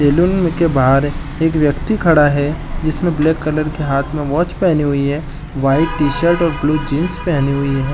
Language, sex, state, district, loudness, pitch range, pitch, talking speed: Chhattisgarhi, male, Chhattisgarh, Jashpur, -16 LUFS, 145-165 Hz, 150 Hz, 205 wpm